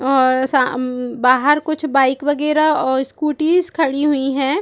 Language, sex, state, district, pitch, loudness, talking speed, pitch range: Hindi, female, Chhattisgarh, Bastar, 275 Hz, -17 LUFS, 145 wpm, 260-300 Hz